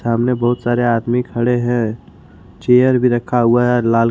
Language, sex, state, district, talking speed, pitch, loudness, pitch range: Hindi, male, Jharkhand, Ranchi, 190 wpm, 120 Hz, -15 LUFS, 115-125 Hz